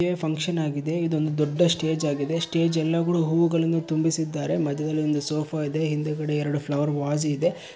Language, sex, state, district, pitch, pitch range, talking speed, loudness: Kannada, male, Karnataka, Bellary, 155 Hz, 150-165 Hz, 155 wpm, -25 LUFS